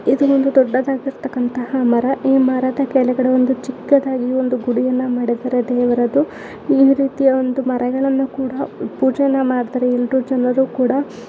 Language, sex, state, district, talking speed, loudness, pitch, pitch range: Kannada, female, Karnataka, Shimoga, 120 wpm, -17 LUFS, 260 Hz, 250-270 Hz